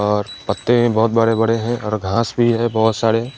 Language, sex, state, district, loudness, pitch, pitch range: Hindi, male, Chandigarh, Chandigarh, -17 LUFS, 115 Hz, 110-115 Hz